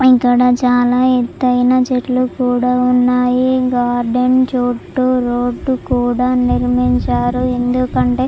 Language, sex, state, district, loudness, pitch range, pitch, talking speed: Telugu, female, Andhra Pradesh, Chittoor, -14 LUFS, 245-255 Hz, 250 Hz, 85 wpm